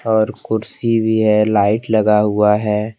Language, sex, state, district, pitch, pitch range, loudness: Hindi, male, Jharkhand, Deoghar, 110 Hz, 105-110 Hz, -16 LUFS